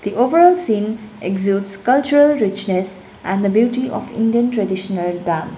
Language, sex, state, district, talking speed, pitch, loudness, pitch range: English, female, Sikkim, Gangtok, 130 wpm, 210 Hz, -17 LUFS, 190-240 Hz